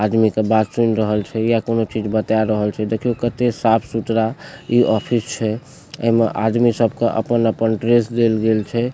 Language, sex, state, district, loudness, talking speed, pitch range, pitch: Maithili, male, Bihar, Supaul, -18 LUFS, 180 wpm, 110-120 Hz, 115 Hz